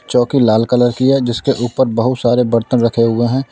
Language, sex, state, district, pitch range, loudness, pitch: Hindi, male, Uttar Pradesh, Lalitpur, 115-130 Hz, -14 LUFS, 120 Hz